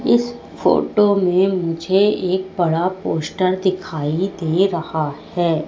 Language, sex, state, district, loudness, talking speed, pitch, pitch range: Hindi, female, Madhya Pradesh, Katni, -19 LUFS, 115 wpm, 185 Hz, 165-190 Hz